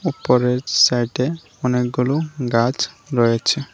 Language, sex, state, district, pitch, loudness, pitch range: Bengali, male, Tripura, West Tripura, 125 Hz, -19 LUFS, 120-145 Hz